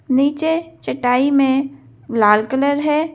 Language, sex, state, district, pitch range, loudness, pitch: Hindi, female, Madhya Pradesh, Bhopal, 245-300 Hz, -17 LUFS, 275 Hz